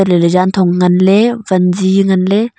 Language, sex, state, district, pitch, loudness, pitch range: Wancho, female, Arunachal Pradesh, Longding, 190 Hz, -11 LUFS, 180-195 Hz